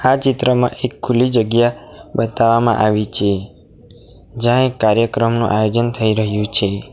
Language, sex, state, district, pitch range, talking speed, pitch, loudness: Gujarati, male, Gujarat, Valsad, 110-120 Hz, 130 wpm, 115 Hz, -16 LUFS